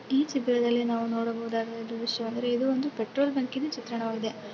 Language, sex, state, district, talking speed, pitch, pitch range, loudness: Kannada, female, Karnataka, Bellary, 160 wpm, 235 Hz, 230-265 Hz, -29 LUFS